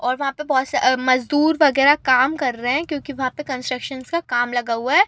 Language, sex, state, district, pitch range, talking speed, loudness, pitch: Hindi, female, Uttar Pradesh, Gorakhpur, 255-295 Hz, 210 wpm, -19 LUFS, 265 Hz